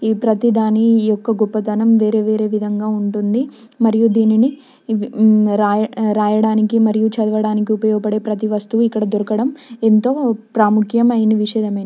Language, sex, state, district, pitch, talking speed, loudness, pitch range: Telugu, female, Telangana, Nalgonda, 220 Hz, 100 wpm, -16 LUFS, 215-225 Hz